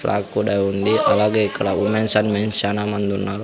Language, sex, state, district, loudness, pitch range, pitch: Telugu, male, Andhra Pradesh, Sri Satya Sai, -19 LUFS, 100-105 Hz, 105 Hz